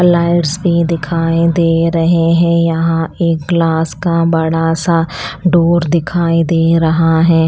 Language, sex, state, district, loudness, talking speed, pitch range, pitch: Hindi, female, Punjab, Pathankot, -13 LUFS, 135 wpm, 165-170 Hz, 165 Hz